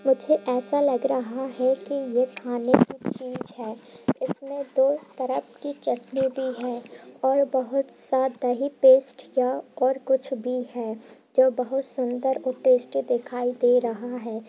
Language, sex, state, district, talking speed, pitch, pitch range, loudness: Hindi, female, Bihar, Purnia, 155 wpm, 260 Hz, 245-265 Hz, -25 LUFS